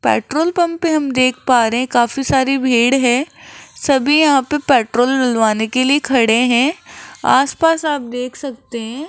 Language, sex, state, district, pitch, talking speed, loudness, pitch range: Hindi, female, Rajasthan, Jaipur, 260 Hz, 170 wpm, -15 LUFS, 245-295 Hz